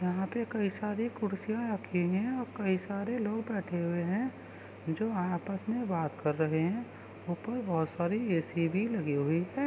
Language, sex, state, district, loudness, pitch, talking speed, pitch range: Hindi, female, Maharashtra, Sindhudurg, -33 LUFS, 195 Hz, 190 wpm, 175-225 Hz